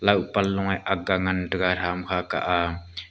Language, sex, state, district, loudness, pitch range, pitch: Wancho, male, Arunachal Pradesh, Longding, -25 LUFS, 90-95 Hz, 90 Hz